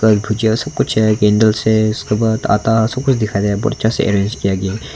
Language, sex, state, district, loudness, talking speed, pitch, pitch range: Hindi, male, Arunachal Pradesh, Longding, -15 LUFS, 265 wpm, 110 Hz, 105-110 Hz